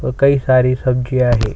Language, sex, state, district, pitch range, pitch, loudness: Hindi, male, Chhattisgarh, Sukma, 125-130 Hz, 130 Hz, -15 LUFS